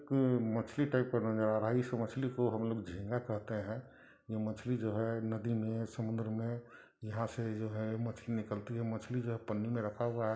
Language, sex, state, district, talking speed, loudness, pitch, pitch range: Hindi, male, Bihar, Sitamarhi, 210 wpm, -37 LUFS, 115 Hz, 110-120 Hz